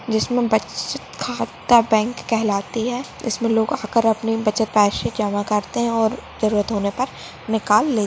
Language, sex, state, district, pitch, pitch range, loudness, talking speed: Hindi, female, Goa, North and South Goa, 220 Hz, 210-235 Hz, -20 LUFS, 150 wpm